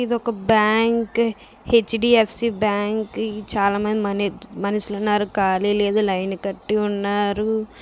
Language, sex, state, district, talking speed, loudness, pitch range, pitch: Telugu, female, Andhra Pradesh, Visakhapatnam, 130 wpm, -21 LUFS, 205-225 Hz, 210 Hz